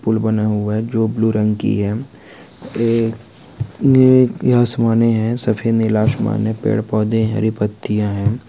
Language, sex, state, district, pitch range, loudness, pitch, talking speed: Hindi, male, West Bengal, Malda, 110-115 Hz, -17 LUFS, 110 Hz, 155 wpm